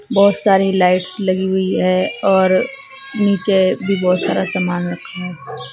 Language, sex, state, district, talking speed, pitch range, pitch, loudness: Hindi, female, Uttar Pradesh, Saharanpur, 145 wpm, 180-200 Hz, 190 Hz, -16 LUFS